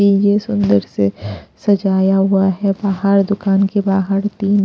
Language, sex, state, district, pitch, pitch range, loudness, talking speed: Hindi, female, Punjab, Pathankot, 195 Hz, 190-200 Hz, -15 LUFS, 140 wpm